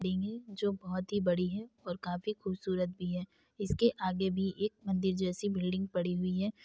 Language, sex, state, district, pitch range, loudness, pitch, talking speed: Hindi, female, Uttar Pradesh, Jalaun, 180-200 Hz, -34 LUFS, 190 Hz, 200 wpm